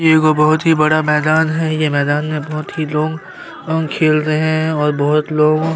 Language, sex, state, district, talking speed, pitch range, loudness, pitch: Hindi, male, Chhattisgarh, Sukma, 200 wpm, 150-160 Hz, -15 LUFS, 155 Hz